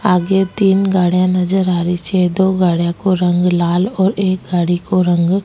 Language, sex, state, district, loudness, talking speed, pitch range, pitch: Rajasthani, female, Rajasthan, Nagaur, -15 LUFS, 200 wpm, 175-190 Hz, 185 Hz